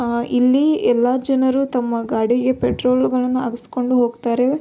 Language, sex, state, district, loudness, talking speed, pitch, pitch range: Kannada, female, Karnataka, Belgaum, -18 LUFS, 115 wpm, 250 Hz, 240-260 Hz